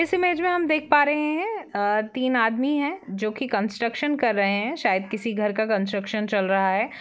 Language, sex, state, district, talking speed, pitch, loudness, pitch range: Hindi, female, Jharkhand, Jamtara, 220 wpm, 230 Hz, -23 LUFS, 210-300 Hz